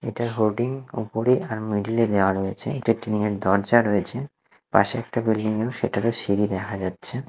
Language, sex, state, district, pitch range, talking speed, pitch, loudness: Bengali, male, Odisha, Nuapada, 100-120 Hz, 165 wpm, 110 Hz, -23 LUFS